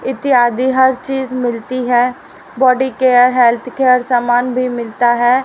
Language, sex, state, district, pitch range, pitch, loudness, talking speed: Hindi, female, Haryana, Rohtak, 245-260 Hz, 250 Hz, -14 LUFS, 145 wpm